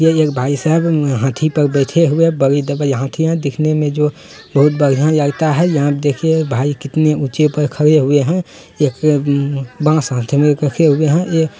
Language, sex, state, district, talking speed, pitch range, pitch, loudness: Hindi, male, Bihar, Jamui, 195 wpm, 140-155 Hz, 150 Hz, -14 LUFS